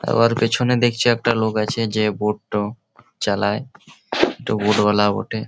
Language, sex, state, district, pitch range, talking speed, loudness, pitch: Bengali, male, West Bengal, Malda, 105-115 Hz, 165 wpm, -20 LUFS, 110 Hz